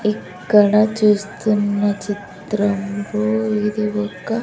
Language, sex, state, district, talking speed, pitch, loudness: Telugu, female, Andhra Pradesh, Sri Satya Sai, 80 wpm, 205 Hz, -19 LUFS